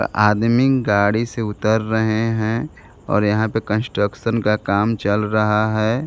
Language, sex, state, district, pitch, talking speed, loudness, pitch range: Hindi, male, Bihar, Kaimur, 110 Hz, 150 wpm, -19 LUFS, 105-115 Hz